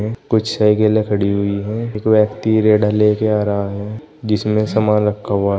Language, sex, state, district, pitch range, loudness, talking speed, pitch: Hindi, male, Uttar Pradesh, Saharanpur, 105-110 Hz, -16 LUFS, 185 wpm, 105 Hz